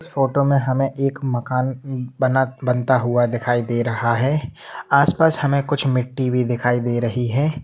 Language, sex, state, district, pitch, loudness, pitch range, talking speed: Hindi, male, Jharkhand, Jamtara, 130 Hz, -20 LUFS, 120-140 Hz, 180 wpm